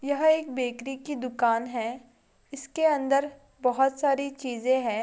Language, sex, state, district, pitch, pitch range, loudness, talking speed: Hindi, female, Goa, North and South Goa, 270 Hz, 245-280 Hz, -27 LUFS, 145 wpm